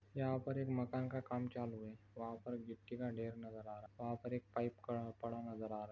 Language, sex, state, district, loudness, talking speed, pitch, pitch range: Hindi, male, Maharashtra, Aurangabad, -45 LUFS, 245 wpm, 115 Hz, 110-125 Hz